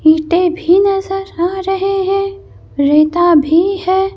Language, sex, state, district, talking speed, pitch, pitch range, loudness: Hindi, female, Madhya Pradesh, Bhopal, 130 wpm, 370 Hz, 330-390 Hz, -13 LUFS